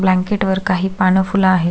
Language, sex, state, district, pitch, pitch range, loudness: Marathi, female, Maharashtra, Solapur, 190 Hz, 185-190 Hz, -16 LUFS